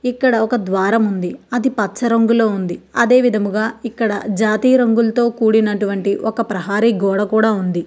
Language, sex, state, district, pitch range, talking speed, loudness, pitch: Telugu, female, Andhra Pradesh, Krishna, 200-235 Hz, 135 wpm, -16 LUFS, 220 Hz